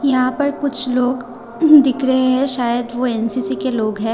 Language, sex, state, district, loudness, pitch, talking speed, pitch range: Hindi, female, Tripura, Unakoti, -16 LUFS, 250 Hz, 190 wpm, 235-265 Hz